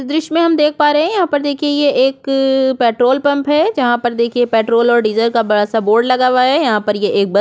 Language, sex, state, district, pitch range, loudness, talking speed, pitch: Hindi, female, Chhattisgarh, Korba, 230-290 Hz, -14 LUFS, 290 wpm, 255 Hz